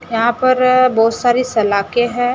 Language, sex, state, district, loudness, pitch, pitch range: Hindi, female, Maharashtra, Gondia, -14 LUFS, 240 Hz, 225-255 Hz